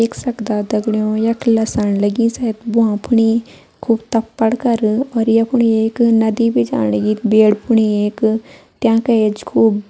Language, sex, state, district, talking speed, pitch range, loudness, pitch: Garhwali, female, Uttarakhand, Uttarkashi, 170 wpm, 215-230 Hz, -16 LUFS, 225 Hz